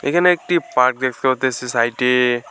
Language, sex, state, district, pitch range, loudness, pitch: Bengali, male, West Bengal, Alipurduar, 125-135 Hz, -17 LUFS, 130 Hz